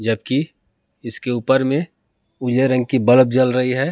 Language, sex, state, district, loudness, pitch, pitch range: Hindi, male, Jharkhand, Palamu, -18 LUFS, 130 Hz, 120-135 Hz